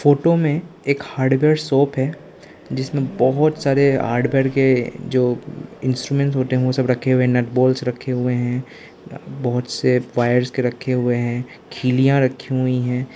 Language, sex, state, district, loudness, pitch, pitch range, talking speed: Hindi, male, Arunachal Pradesh, Lower Dibang Valley, -19 LUFS, 130 Hz, 125-135 Hz, 160 wpm